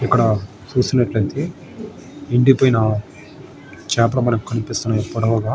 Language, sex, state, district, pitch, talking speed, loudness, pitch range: Telugu, male, Andhra Pradesh, Guntur, 115 Hz, 75 wpm, -18 LUFS, 110-125 Hz